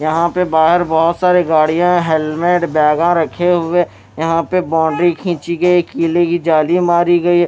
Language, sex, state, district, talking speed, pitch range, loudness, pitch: Hindi, male, Maharashtra, Mumbai Suburban, 160 wpm, 160-175 Hz, -14 LUFS, 170 Hz